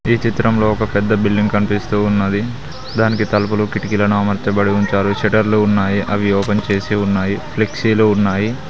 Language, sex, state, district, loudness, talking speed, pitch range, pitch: Telugu, male, Telangana, Mahabubabad, -16 LUFS, 140 wpm, 100-110 Hz, 105 Hz